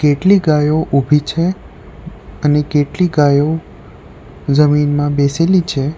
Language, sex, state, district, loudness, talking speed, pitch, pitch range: Gujarati, male, Gujarat, Valsad, -14 LUFS, 100 wpm, 150 Hz, 145-160 Hz